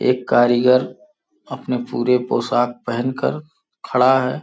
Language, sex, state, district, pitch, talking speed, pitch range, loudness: Hindi, male, Uttar Pradesh, Gorakhpur, 125 Hz, 110 wpm, 125-150 Hz, -18 LUFS